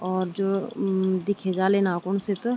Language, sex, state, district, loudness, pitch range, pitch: Garhwali, female, Uttarakhand, Tehri Garhwal, -25 LUFS, 185-200 Hz, 195 Hz